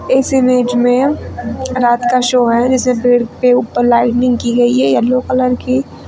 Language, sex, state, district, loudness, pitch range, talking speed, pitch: Hindi, female, Uttar Pradesh, Lucknow, -13 LUFS, 245-255 Hz, 175 wpm, 250 Hz